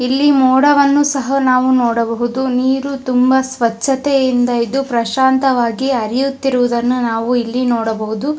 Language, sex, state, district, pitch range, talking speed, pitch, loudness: Kannada, female, Karnataka, Dharwad, 240-270 Hz, 100 wpm, 255 Hz, -14 LUFS